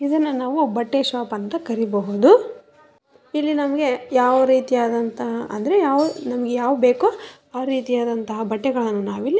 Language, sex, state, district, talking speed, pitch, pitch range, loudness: Kannada, female, Karnataka, Raichur, 120 wpm, 255 Hz, 235-295 Hz, -20 LUFS